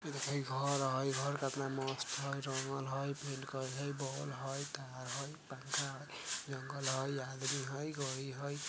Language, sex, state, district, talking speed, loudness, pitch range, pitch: Bajjika, female, Bihar, Vaishali, 175 wpm, -40 LUFS, 135-140 Hz, 135 Hz